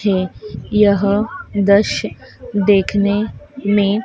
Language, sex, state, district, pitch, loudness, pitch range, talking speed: Hindi, female, Madhya Pradesh, Dhar, 205 Hz, -16 LUFS, 200-210 Hz, 75 wpm